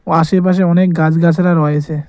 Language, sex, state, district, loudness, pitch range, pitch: Bengali, male, West Bengal, Cooch Behar, -13 LUFS, 155-180 Hz, 170 Hz